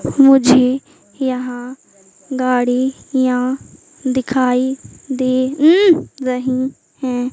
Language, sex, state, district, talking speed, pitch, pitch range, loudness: Hindi, female, Madhya Pradesh, Katni, 75 wpm, 255 Hz, 250-265 Hz, -16 LUFS